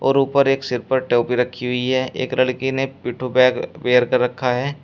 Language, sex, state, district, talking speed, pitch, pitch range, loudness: Hindi, male, Uttar Pradesh, Shamli, 225 wpm, 130 Hz, 125-135 Hz, -19 LUFS